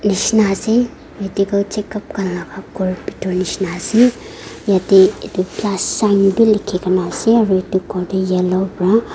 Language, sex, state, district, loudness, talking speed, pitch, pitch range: Nagamese, female, Nagaland, Dimapur, -16 LUFS, 140 wpm, 195 Hz, 185-210 Hz